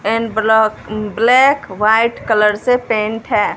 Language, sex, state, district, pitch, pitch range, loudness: Hindi, female, Punjab, Fazilka, 220 Hz, 215-235 Hz, -14 LUFS